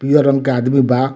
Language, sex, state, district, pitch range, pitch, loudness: Bhojpuri, male, Bihar, Muzaffarpur, 130-135 Hz, 135 Hz, -14 LUFS